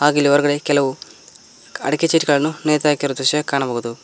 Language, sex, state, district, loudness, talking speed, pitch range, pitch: Kannada, male, Karnataka, Koppal, -18 LUFS, 150 wpm, 140-150 Hz, 145 Hz